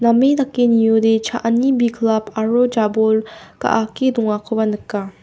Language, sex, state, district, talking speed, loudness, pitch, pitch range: Garo, female, Meghalaya, West Garo Hills, 115 wpm, -17 LUFS, 225 Hz, 220-240 Hz